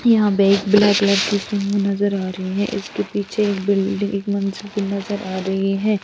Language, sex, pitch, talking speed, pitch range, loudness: Urdu, female, 200 Hz, 220 wpm, 195-205 Hz, -19 LUFS